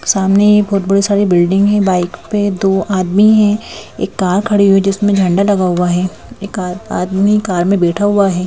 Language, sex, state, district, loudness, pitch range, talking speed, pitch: Hindi, female, Madhya Pradesh, Bhopal, -13 LUFS, 185-205 Hz, 205 wpm, 195 Hz